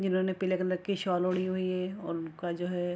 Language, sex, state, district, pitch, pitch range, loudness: Hindi, female, Bihar, Araria, 185 Hz, 175-185 Hz, -32 LUFS